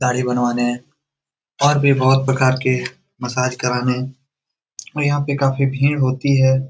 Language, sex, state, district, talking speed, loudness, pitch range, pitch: Hindi, male, Bihar, Jamui, 145 wpm, -18 LUFS, 125-140 Hz, 130 Hz